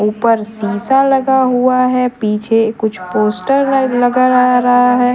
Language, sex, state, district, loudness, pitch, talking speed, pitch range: Hindi, female, Jharkhand, Deoghar, -13 LUFS, 245 Hz, 130 wpm, 220-255 Hz